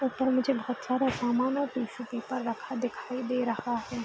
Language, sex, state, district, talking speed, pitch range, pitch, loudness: Hindi, female, Bihar, East Champaran, 205 wpm, 240-260 Hz, 250 Hz, -30 LUFS